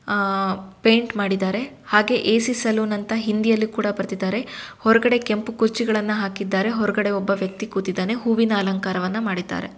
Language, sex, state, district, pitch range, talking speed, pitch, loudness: Kannada, female, Karnataka, Shimoga, 195-225 Hz, 115 wpm, 210 Hz, -21 LUFS